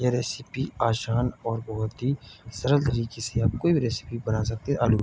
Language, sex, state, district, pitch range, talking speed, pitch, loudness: Hindi, male, Bihar, Bhagalpur, 115-130 Hz, 215 wpm, 115 Hz, -27 LUFS